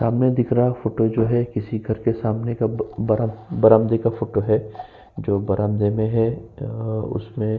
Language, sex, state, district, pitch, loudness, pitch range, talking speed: Hindi, male, Uttar Pradesh, Jyotiba Phule Nagar, 110 Hz, -21 LUFS, 110-115 Hz, 180 wpm